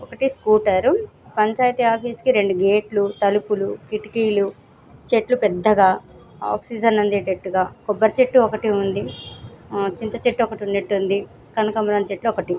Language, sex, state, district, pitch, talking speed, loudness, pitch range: Telugu, female, Telangana, Nalgonda, 210 Hz, 120 wpm, -20 LUFS, 195-225 Hz